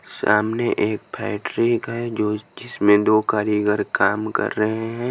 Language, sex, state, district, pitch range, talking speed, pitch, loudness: Hindi, male, Haryana, Jhajjar, 105-115 Hz, 130 wpm, 110 Hz, -21 LUFS